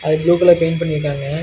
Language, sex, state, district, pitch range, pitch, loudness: Tamil, male, Karnataka, Bangalore, 150-170 Hz, 155 Hz, -15 LUFS